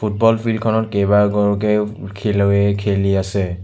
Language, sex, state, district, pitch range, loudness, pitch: Assamese, male, Assam, Sonitpur, 100-105 Hz, -17 LUFS, 105 Hz